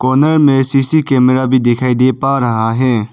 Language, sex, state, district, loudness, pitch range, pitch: Hindi, male, Arunachal Pradesh, Papum Pare, -12 LUFS, 125-135 Hz, 130 Hz